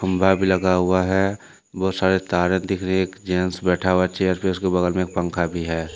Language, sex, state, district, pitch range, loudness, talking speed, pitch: Hindi, male, Jharkhand, Deoghar, 90-95 Hz, -21 LUFS, 250 wpm, 95 Hz